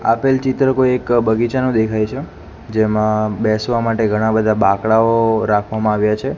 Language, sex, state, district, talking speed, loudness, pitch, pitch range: Gujarati, male, Gujarat, Gandhinagar, 150 wpm, -16 LUFS, 110 Hz, 110-120 Hz